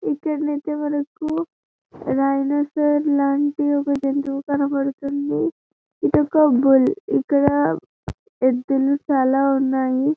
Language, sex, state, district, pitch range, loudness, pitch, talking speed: Telugu, female, Telangana, Karimnagar, 275-295 Hz, -20 LUFS, 285 Hz, 65 wpm